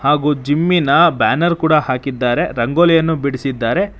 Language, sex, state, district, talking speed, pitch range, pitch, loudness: Kannada, male, Karnataka, Bangalore, 105 wpm, 130-165 Hz, 145 Hz, -15 LUFS